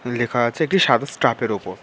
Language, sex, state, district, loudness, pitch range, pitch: Bengali, male, West Bengal, North 24 Parganas, -19 LUFS, 120-150 Hz, 120 Hz